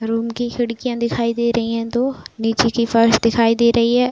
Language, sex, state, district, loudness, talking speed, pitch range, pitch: Hindi, female, Uttar Pradesh, Budaun, -18 LUFS, 205 wpm, 230-235 Hz, 235 Hz